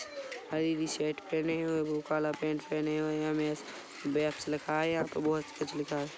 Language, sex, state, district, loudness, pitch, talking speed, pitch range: Hindi, male, Chhattisgarh, Rajnandgaon, -33 LUFS, 155 Hz, 185 wpm, 150-160 Hz